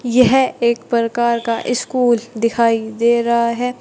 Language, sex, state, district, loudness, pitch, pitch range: Hindi, female, Uttar Pradesh, Saharanpur, -16 LUFS, 235 Hz, 230-245 Hz